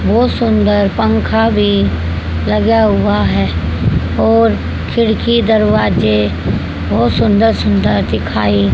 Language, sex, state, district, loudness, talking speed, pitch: Hindi, female, Haryana, Jhajjar, -13 LUFS, 95 wpm, 105 Hz